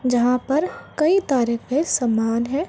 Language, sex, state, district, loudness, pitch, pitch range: Hindi, female, Uttar Pradesh, Varanasi, -21 LUFS, 255 Hz, 240-300 Hz